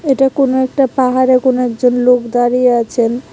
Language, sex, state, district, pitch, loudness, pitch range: Bengali, female, Tripura, West Tripura, 255 Hz, -13 LUFS, 245-260 Hz